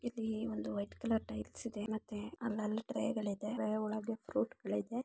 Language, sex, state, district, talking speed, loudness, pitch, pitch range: Kannada, female, Karnataka, Shimoga, 105 wpm, -39 LUFS, 215 Hz, 210-225 Hz